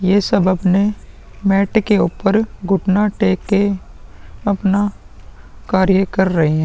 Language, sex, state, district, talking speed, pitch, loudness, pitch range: Hindi, male, Uttar Pradesh, Muzaffarnagar, 125 wpm, 195 Hz, -16 LUFS, 185-205 Hz